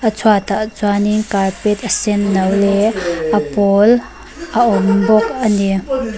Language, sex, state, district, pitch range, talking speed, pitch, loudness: Mizo, female, Mizoram, Aizawl, 200-220 Hz, 135 wpm, 210 Hz, -15 LUFS